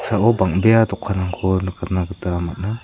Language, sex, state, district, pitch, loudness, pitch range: Garo, male, Meghalaya, South Garo Hills, 95 Hz, -19 LUFS, 90-105 Hz